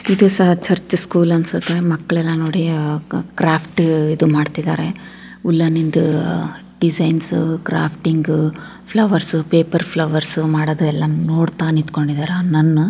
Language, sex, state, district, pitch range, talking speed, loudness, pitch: Kannada, female, Karnataka, Chamarajanagar, 155-170 Hz, 100 wpm, -17 LUFS, 160 Hz